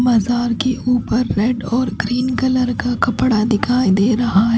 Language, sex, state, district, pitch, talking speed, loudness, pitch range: Hindi, female, Chhattisgarh, Raipur, 240 Hz, 170 wpm, -17 LUFS, 230-250 Hz